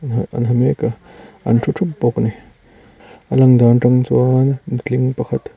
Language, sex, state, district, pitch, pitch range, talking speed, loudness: Mizo, male, Mizoram, Aizawl, 125 Hz, 120-130 Hz, 195 wpm, -16 LUFS